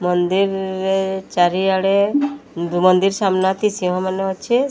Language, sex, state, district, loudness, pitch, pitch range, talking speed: Odia, female, Odisha, Sambalpur, -18 LUFS, 190 Hz, 185-195 Hz, 125 wpm